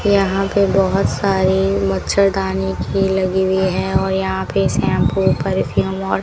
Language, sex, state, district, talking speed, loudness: Hindi, female, Rajasthan, Bikaner, 135 wpm, -17 LUFS